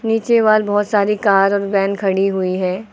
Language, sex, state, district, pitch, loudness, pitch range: Hindi, female, Uttar Pradesh, Lucknow, 200 Hz, -16 LUFS, 195-215 Hz